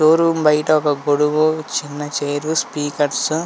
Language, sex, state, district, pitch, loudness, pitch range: Telugu, male, Andhra Pradesh, Visakhapatnam, 150 Hz, -18 LUFS, 145-155 Hz